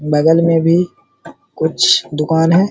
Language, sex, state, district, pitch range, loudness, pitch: Hindi, male, Uttar Pradesh, Hamirpur, 155-170 Hz, -14 LUFS, 160 Hz